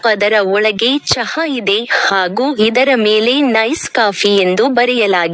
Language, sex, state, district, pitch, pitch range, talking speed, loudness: Kannada, female, Karnataka, Koppal, 220 Hz, 205-255 Hz, 135 wpm, -12 LUFS